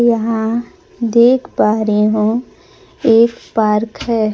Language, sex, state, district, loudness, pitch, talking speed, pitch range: Hindi, female, Bihar, Kaimur, -15 LUFS, 225 Hz, 110 wpm, 215-235 Hz